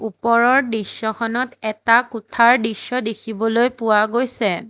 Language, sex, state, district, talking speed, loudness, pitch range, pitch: Assamese, female, Assam, Hailakandi, 100 wpm, -18 LUFS, 220-240 Hz, 230 Hz